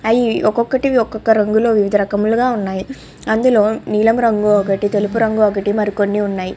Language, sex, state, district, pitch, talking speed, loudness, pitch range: Telugu, female, Andhra Pradesh, Krishna, 215 Hz, 145 wpm, -15 LUFS, 205-230 Hz